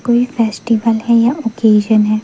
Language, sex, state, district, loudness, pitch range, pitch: Hindi, female, Madhya Pradesh, Umaria, -13 LUFS, 220-235 Hz, 230 Hz